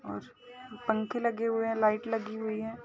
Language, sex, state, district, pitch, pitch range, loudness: Hindi, female, Uttar Pradesh, Jalaun, 225 Hz, 215-235 Hz, -31 LUFS